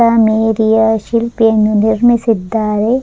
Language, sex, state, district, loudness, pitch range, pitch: Kannada, male, Karnataka, Dharwad, -12 LUFS, 220-230 Hz, 220 Hz